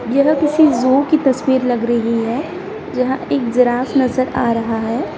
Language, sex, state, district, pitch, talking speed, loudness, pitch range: Hindi, female, Bihar, Samastipur, 255 Hz, 185 wpm, -16 LUFS, 240-285 Hz